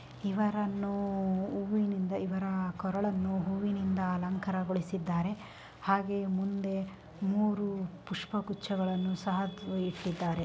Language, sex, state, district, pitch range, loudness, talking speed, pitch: Kannada, female, Karnataka, Shimoga, 185-200 Hz, -33 LUFS, 70 wpm, 195 Hz